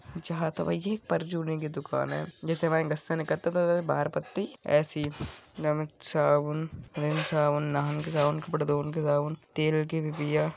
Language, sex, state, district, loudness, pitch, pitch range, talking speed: Bundeli, male, Uttar Pradesh, Budaun, -29 LUFS, 155 Hz, 145-160 Hz, 170 wpm